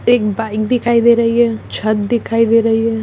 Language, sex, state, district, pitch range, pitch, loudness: Hindi, female, Andhra Pradesh, Krishna, 225-235 Hz, 230 Hz, -14 LUFS